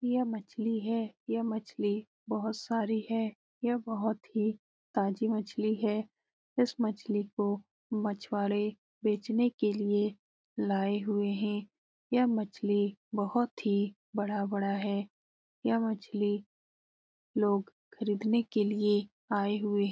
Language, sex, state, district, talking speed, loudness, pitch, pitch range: Hindi, female, Bihar, Lakhisarai, 130 wpm, -32 LUFS, 210 Hz, 205-225 Hz